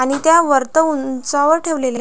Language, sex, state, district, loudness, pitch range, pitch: Marathi, female, Maharashtra, Pune, -15 LUFS, 265-320 Hz, 285 Hz